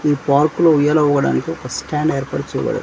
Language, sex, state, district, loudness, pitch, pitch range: Telugu, male, Andhra Pradesh, Manyam, -17 LUFS, 145 Hz, 140-155 Hz